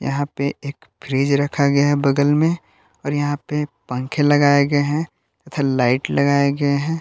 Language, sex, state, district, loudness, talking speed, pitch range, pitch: Hindi, male, Jharkhand, Palamu, -19 LUFS, 180 wpm, 140-145 Hz, 145 Hz